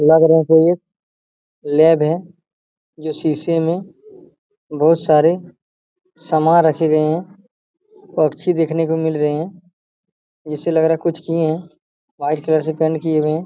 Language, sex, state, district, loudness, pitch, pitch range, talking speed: Hindi, male, Bihar, Araria, -17 LUFS, 160 Hz, 155-175 Hz, 150 wpm